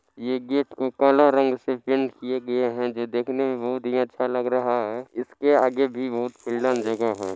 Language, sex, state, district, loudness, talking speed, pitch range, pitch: Maithili, male, Bihar, Supaul, -24 LUFS, 210 wpm, 120-130 Hz, 125 Hz